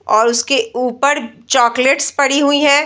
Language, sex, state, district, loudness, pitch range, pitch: Hindi, female, Bihar, Samastipur, -14 LUFS, 240-285 Hz, 275 Hz